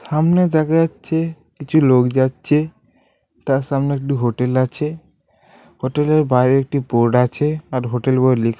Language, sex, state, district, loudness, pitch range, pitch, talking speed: Bengali, male, West Bengal, Malda, -17 LUFS, 130-155 Hz, 140 Hz, 140 wpm